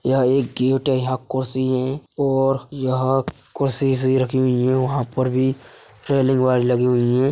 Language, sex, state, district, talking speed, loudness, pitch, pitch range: Hindi, male, Uttar Pradesh, Hamirpur, 180 wpm, -20 LUFS, 130 Hz, 130-135 Hz